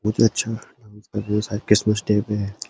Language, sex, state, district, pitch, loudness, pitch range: Hindi, male, Uttarakhand, Uttarkashi, 105 Hz, -22 LUFS, 105-110 Hz